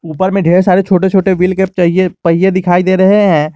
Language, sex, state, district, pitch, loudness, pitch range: Hindi, male, Jharkhand, Garhwa, 185 Hz, -11 LUFS, 175-190 Hz